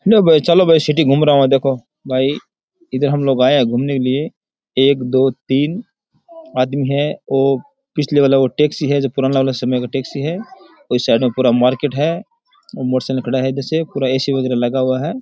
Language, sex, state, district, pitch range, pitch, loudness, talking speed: Rajasthani, male, Rajasthan, Churu, 130-155 Hz, 135 Hz, -16 LUFS, 205 wpm